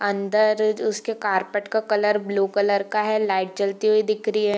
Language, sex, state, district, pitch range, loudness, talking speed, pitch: Hindi, female, Bihar, Darbhanga, 200-215 Hz, -22 LUFS, 195 wpm, 210 Hz